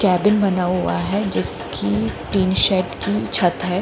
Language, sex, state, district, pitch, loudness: Hindi, female, Jharkhand, Jamtara, 180 Hz, -18 LUFS